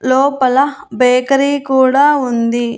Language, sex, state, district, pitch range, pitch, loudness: Telugu, female, Andhra Pradesh, Annamaya, 250-275 Hz, 265 Hz, -13 LUFS